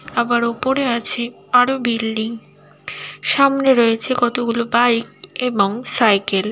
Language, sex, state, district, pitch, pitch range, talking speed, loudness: Bengali, female, West Bengal, Paschim Medinipur, 235 Hz, 225-250 Hz, 100 wpm, -17 LUFS